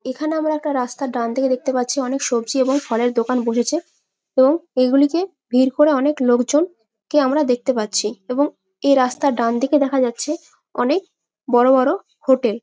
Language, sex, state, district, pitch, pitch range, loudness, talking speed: Bengali, female, West Bengal, Malda, 260 Hz, 245-295 Hz, -19 LUFS, 170 wpm